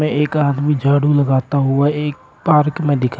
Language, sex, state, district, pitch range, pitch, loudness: Hindi, male, Uttar Pradesh, Shamli, 140-150 Hz, 145 Hz, -16 LUFS